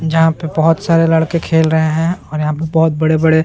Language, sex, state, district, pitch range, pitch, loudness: Hindi, male, Bihar, Saran, 160-165 Hz, 160 Hz, -14 LUFS